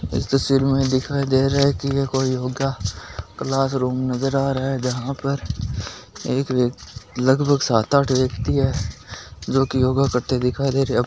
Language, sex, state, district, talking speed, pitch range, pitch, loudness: Hindi, male, Rajasthan, Nagaur, 190 wpm, 125-135 Hz, 130 Hz, -21 LUFS